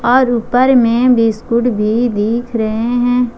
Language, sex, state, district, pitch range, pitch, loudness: Hindi, female, Jharkhand, Ranchi, 225-245 Hz, 240 Hz, -13 LUFS